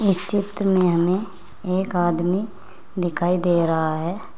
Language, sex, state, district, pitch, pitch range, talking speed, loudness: Hindi, female, Uttar Pradesh, Saharanpur, 180 Hz, 175-195 Hz, 135 wpm, -21 LUFS